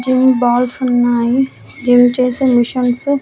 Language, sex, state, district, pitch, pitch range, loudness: Telugu, female, Andhra Pradesh, Annamaya, 250 Hz, 245-260 Hz, -13 LUFS